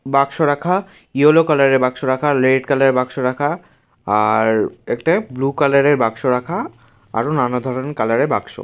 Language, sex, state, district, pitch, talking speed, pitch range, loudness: Bengali, male, West Bengal, Jalpaiguri, 135 Hz, 165 wpm, 125-145 Hz, -17 LUFS